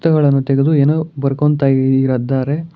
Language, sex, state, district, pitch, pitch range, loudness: Kannada, male, Karnataka, Bangalore, 140 Hz, 135-155 Hz, -15 LUFS